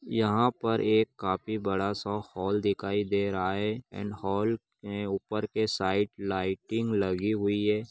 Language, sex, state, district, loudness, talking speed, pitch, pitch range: Magahi, male, Bihar, Gaya, -29 LUFS, 150 wpm, 105 Hz, 100-110 Hz